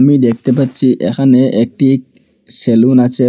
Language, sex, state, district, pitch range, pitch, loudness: Bengali, male, Assam, Hailakandi, 125-135 Hz, 130 Hz, -12 LUFS